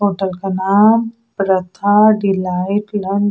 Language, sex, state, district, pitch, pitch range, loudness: Hindi, female, Odisha, Sambalpur, 200 Hz, 190-210 Hz, -15 LUFS